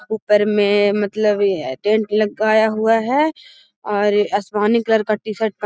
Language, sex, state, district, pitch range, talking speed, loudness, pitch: Magahi, female, Bihar, Gaya, 205-220 Hz, 140 wpm, -17 LUFS, 215 Hz